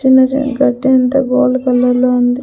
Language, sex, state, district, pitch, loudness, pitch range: Telugu, female, Andhra Pradesh, Sri Satya Sai, 260 Hz, -12 LUFS, 250-265 Hz